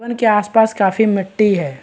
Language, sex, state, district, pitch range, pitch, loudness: Hindi, female, Bihar, East Champaran, 195-220 Hz, 210 Hz, -15 LUFS